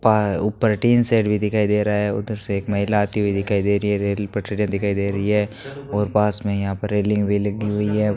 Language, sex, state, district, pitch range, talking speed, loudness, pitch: Hindi, male, Rajasthan, Bikaner, 100-105 Hz, 250 wpm, -20 LUFS, 105 Hz